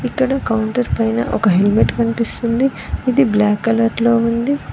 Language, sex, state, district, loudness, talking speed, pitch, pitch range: Telugu, female, Telangana, Mahabubabad, -16 LUFS, 140 wpm, 230 Hz, 210-250 Hz